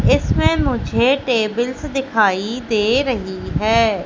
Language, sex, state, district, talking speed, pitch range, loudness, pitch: Hindi, female, Madhya Pradesh, Katni, 105 wpm, 215-255 Hz, -18 LUFS, 230 Hz